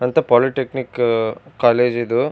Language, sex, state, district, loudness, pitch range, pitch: Kannada, male, Karnataka, Bijapur, -18 LUFS, 120-135 Hz, 125 Hz